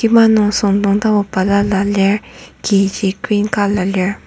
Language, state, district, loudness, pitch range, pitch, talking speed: Ao, Nagaland, Kohima, -15 LUFS, 195-210 Hz, 200 Hz, 140 wpm